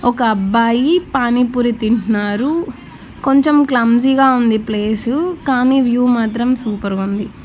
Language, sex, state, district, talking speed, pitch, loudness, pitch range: Telugu, female, Andhra Pradesh, Annamaya, 115 wpm, 240 Hz, -15 LUFS, 220-265 Hz